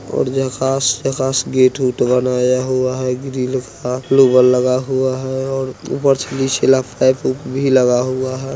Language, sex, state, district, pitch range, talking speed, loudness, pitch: Hindi, male, Bihar, Muzaffarpur, 125-135 Hz, 175 wpm, -16 LUFS, 130 Hz